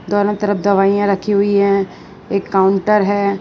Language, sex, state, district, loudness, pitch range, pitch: Hindi, female, Gujarat, Valsad, -15 LUFS, 195-205 Hz, 200 Hz